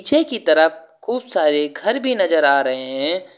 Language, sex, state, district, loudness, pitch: Hindi, male, Uttar Pradesh, Lucknow, -17 LUFS, 180 Hz